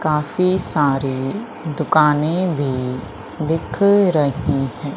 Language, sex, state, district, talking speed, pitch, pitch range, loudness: Hindi, female, Madhya Pradesh, Umaria, 85 wpm, 150 Hz, 135-165 Hz, -19 LUFS